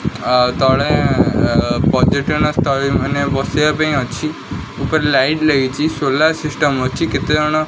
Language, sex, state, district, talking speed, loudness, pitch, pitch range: Odia, male, Odisha, Khordha, 115 wpm, -15 LUFS, 140 Hz, 135-150 Hz